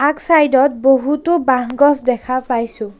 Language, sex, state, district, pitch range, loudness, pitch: Assamese, female, Assam, Sonitpur, 250-290 Hz, -15 LUFS, 265 Hz